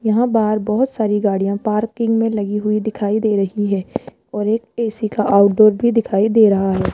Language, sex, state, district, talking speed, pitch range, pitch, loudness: Hindi, female, Rajasthan, Jaipur, 205 wpm, 205-225 Hz, 215 Hz, -17 LUFS